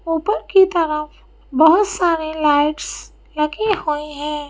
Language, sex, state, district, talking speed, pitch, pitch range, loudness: Hindi, female, Madhya Pradesh, Bhopal, 120 wpm, 315 Hz, 300-380 Hz, -18 LUFS